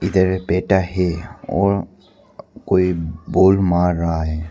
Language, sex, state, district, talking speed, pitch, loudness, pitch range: Hindi, male, Arunachal Pradesh, Papum Pare, 135 wpm, 90 Hz, -18 LUFS, 85-95 Hz